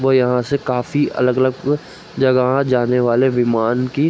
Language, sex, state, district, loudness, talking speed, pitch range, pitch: Hindi, male, Jharkhand, Jamtara, -17 LUFS, 160 wpm, 125-135 Hz, 130 Hz